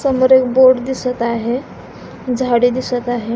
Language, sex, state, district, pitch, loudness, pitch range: Marathi, female, Maharashtra, Pune, 250 Hz, -15 LUFS, 240-260 Hz